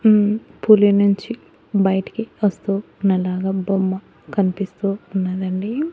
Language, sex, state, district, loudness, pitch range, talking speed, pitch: Telugu, female, Andhra Pradesh, Annamaya, -20 LUFS, 190-210 Hz, 100 wpm, 195 Hz